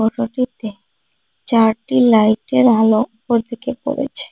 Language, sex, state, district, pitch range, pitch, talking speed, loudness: Bengali, female, Assam, Hailakandi, 220-260 Hz, 235 Hz, 85 wpm, -16 LUFS